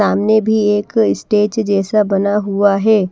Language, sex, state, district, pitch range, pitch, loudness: Hindi, female, Bihar, Kaimur, 200-215 Hz, 210 Hz, -14 LUFS